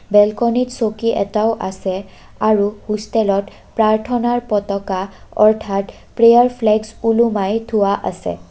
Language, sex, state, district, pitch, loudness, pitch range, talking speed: Assamese, female, Assam, Kamrup Metropolitan, 215 Hz, -17 LUFS, 200-225 Hz, 100 wpm